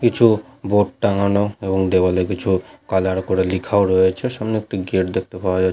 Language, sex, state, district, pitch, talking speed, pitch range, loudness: Bengali, male, West Bengal, Malda, 95 Hz, 180 wpm, 95-105 Hz, -19 LUFS